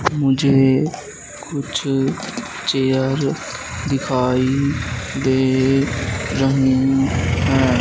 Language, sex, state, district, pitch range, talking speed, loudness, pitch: Hindi, male, Madhya Pradesh, Katni, 130-135 Hz, 55 wpm, -19 LUFS, 135 Hz